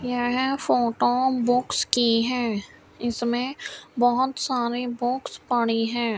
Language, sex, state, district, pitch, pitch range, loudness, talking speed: Hindi, female, Rajasthan, Bikaner, 245 Hz, 235-250 Hz, -24 LUFS, 105 wpm